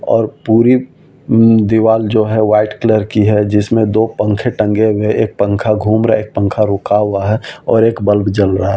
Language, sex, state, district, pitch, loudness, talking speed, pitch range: Hindi, male, Delhi, New Delhi, 110 Hz, -13 LUFS, 210 wpm, 105-115 Hz